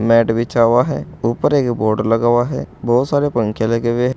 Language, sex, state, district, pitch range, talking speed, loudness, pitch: Hindi, male, Uttar Pradesh, Saharanpur, 115-125 Hz, 215 wpm, -16 LUFS, 120 Hz